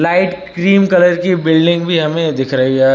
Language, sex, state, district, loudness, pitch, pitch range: Hindi, male, Uttar Pradesh, Lucknow, -13 LUFS, 170 Hz, 155-180 Hz